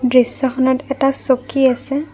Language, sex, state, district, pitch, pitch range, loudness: Assamese, female, Assam, Kamrup Metropolitan, 260 Hz, 255-275 Hz, -17 LUFS